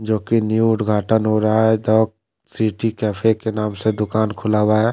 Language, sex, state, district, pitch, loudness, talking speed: Hindi, male, Jharkhand, Deoghar, 110 Hz, -18 LUFS, 195 wpm